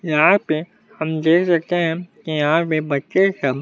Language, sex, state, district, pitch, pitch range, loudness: Hindi, male, Bihar, Kaimur, 165 Hz, 155-185 Hz, -19 LUFS